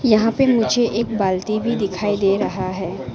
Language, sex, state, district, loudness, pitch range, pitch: Hindi, female, Arunachal Pradesh, Lower Dibang Valley, -19 LUFS, 195-230 Hz, 215 Hz